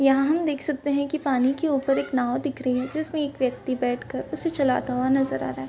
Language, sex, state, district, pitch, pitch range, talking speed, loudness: Hindi, female, Uttar Pradesh, Varanasi, 270 Hz, 255-290 Hz, 275 wpm, -25 LUFS